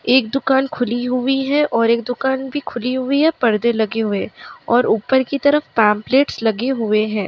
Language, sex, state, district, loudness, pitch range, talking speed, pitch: Hindi, female, Bihar, Kishanganj, -17 LUFS, 225-270 Hz, 205 wpm, 250 Hz